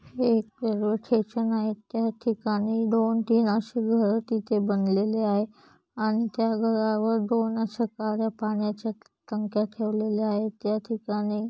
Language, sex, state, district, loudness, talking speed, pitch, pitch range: Marathi, female, Maharashtra, Chandrapur, -27 LUFS, 140 wpm, 220 Hz, 210-225 Hz